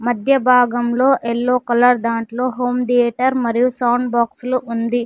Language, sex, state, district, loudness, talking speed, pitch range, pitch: Telugu, female, Telangana, Mahabubabad, -17 LUFS, 145 wpm, 235-250 Hz, 245 Hz